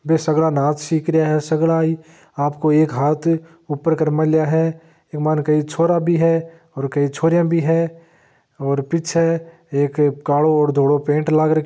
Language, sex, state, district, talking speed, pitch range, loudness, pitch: Marwari, male, Rajasthan, Nagaur, 180 wpm, 150-165 Hz, -18 LUFS, 155 Hz